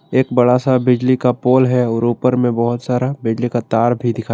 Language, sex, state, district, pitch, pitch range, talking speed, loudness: Hindi, male, Jharkhand, Garhwa, 125 Hz, 120-125 Hz, 235 wpm, -16 LUFS